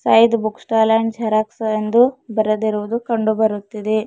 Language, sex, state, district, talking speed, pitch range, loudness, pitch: Kannada, female, Karnataka, Bidar, 130 wpm, 215-230 Hz, -18 LUFS, 220 Hz